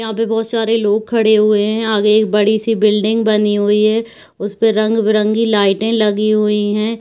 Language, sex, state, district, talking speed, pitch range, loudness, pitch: Hindi, female, Uttar Pradesh, Varanasi, 195 wpm, 210-225 Hz, -14 LUFS, 215 Hz